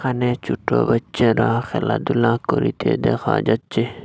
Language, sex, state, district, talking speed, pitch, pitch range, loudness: Bengali, male, Assam, Hailakandi, 105 wpm, 115 Hz, 110-125 Hz, -20 LUFS